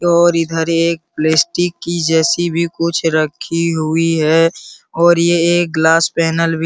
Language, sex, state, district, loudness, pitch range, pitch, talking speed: Hindi, male, Bihar, Araria, -14 LUFS, 160-170 Hz, 165 Hz, 160 wpm